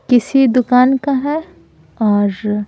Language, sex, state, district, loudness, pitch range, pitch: Hindi, female, Bihar, Patna, -14 LUFS, 210-270 Hz, 250 Hz